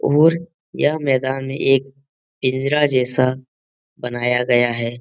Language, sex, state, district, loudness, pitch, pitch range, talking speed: Hindi, male, Bihar, Jamui, -19 LUFS, 130 Hz, 125-140 Hz, 120 wpm